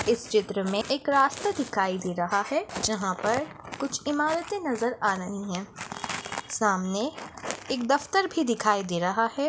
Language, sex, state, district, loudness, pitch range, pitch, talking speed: Hindi, female, Chhattisgarh, Bastar, -27 LUFS, 200-280 Hz, 225 Hz, 160 wpm